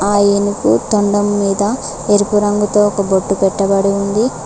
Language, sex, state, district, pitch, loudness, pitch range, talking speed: Telugu, female, Telangana, Mahabubabad, 205 Hz, -14 LUFS, 195-205 Hz, 135 wpm